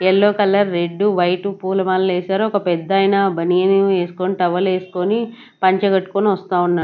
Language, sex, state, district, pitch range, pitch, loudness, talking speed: Telugu, female, Andhra Pradesh, Sri Satya Sai, 180-200 Hz, 190 Hz, -17 LUFS, 140 wpm